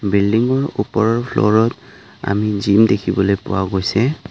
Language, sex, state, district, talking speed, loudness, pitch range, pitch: Assamese, male, Assam, Kamrup Metropolitan, 110 wpm, -17 LUFS, 100-115 Hz, 105 Hz